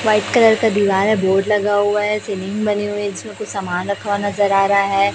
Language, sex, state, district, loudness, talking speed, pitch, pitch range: Hindi, female, Chhattisgarh, Raipur, -17 LUFS, 245 wpm, 205 Hz, 200-210 Hz